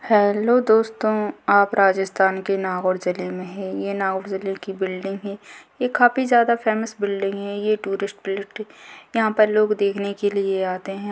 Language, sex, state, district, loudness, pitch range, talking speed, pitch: Hindi, female, Rajasthan, Nagaur, -21 LUFS, 195-215 Hz, 175 wpm, 200 Hz